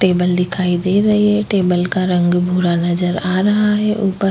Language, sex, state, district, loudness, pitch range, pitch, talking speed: Hindi, female, Goa, North and South Goa, -16 LUFS, 180-205 Hz, 185 Hz, 210 wpm